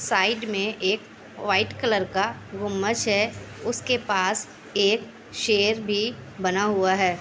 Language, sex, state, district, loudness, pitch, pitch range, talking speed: Hindi, female, Bihar, Kishanganj, -24 LUFS, 205 Hz, 190-220 Hz, 135 wpm